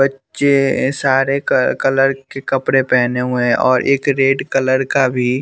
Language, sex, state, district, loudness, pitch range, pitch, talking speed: Hindi, male, Bihar, West Champaran, -15 LUFS, 130-135 Hz, 135 Hz, 175 wpm